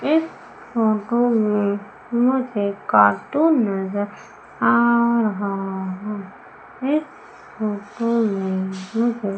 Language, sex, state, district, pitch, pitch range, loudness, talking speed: Hindi, female, Madhya Pradesh, Umaria, 210 Hz, 200-235 Hz, -21 LUFS, 55 wpm